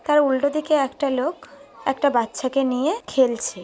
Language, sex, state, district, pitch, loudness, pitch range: Bengali, female, West Bengal, Kolkata, 275 Hz, -22 LUFS, 260-290 Hz